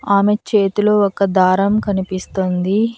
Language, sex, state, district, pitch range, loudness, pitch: Telugu, female, Andhra Pradesh, Annamaya, 190-210 Hz, -16 LUFS, 200 Hz